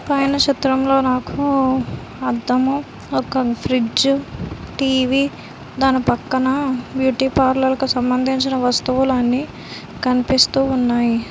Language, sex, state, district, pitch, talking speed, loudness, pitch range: Telugu, female, Andhra Pradesh, Visakhapatnam, 265 Hz, 85 wpm, -18 LUFS, 255-270 Hz